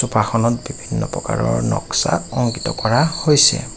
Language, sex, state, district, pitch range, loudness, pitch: Assamese, male, Assam, Kamrup Metropolitan, 115-155 Hz, -18 LUFS, 125 Hz